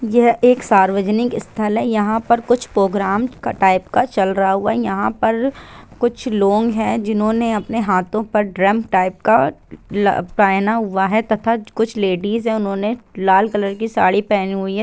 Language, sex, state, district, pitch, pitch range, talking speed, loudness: Hindi, female, Bihar, Sitamarhi, 215 Hz, 195-230 Hz, 165 wpm, -17 LUFS